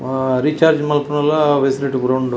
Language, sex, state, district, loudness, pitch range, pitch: Tulu, male, Karnataka, Dakshina Kannada, -16 LUFS, 130-150 Hz, 140 Hz